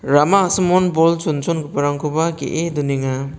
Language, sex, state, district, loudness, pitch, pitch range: Garo, male, Meghalaya, South Garo Hills, -18 LUFS, 160 Hz, 145-170 Hz